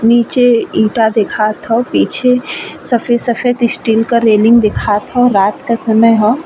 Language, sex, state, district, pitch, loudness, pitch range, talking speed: Bhojpuri, female, Uttar Pradesh, Ghazipur, 230 Hz, -12 LUFS, 220-240 Hz, 140 wpm